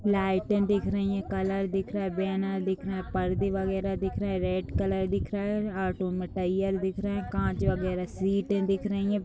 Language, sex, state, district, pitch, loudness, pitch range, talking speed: Hindi, female, Uttar Pradesh, Budaun, 195 Hz, -29 LUFS, 190-200 Hz, 260 wpm